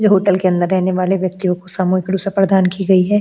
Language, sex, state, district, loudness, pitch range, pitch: Hindi, female, Goa, North and South Goa, -15 LUFS, 185-195 Hz, 190 Hz